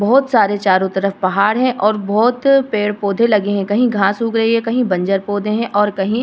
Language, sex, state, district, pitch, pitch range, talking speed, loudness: Hindi, female, Uttar Pradesh, Hamirpur, 210 Hz, 200-230 Hz, 220 wpm, -15 LUFS